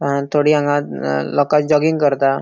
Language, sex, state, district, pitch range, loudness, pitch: Konkani, male, Goa, North and South Goa, 135-150 Hz, -16 LUFS, 145 Hz